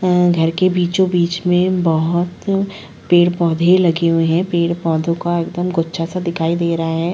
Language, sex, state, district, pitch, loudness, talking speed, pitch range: Hindi, female, Bihar, Madhepura, 170 Hz, -16 LUFS, 150 wpm, 165-180 Hz